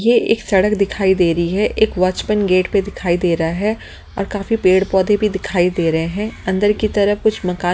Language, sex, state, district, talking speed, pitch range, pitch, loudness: Hindi, female, Delhi, New Delhi, 215 wpm, 180-210 Hz, 195 Hz, -17 LUFS